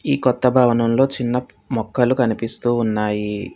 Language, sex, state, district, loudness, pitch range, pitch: Telugu, male, Telangana, Hyderabad, -19 LUFS, 110-125 Hz, 120 Hz